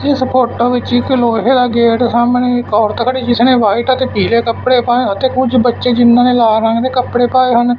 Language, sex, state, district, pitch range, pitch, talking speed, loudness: Punjabi, male, Punjab, Fazilka, 235-255 Hz, 245 Hz, 230 wpm, -12 LUFS